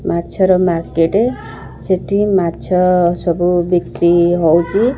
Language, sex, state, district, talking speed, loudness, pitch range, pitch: Odia, female, Odisha, Khordha, 110 wpm, -14 LUFS, 170-185 Hz, 175 Hz